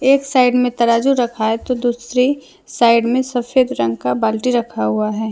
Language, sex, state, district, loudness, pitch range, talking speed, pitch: Hindi, female, Jharkhand, Deoghar, -16 LUFS, 220-255 Hz, 190 wpm, 240 Hz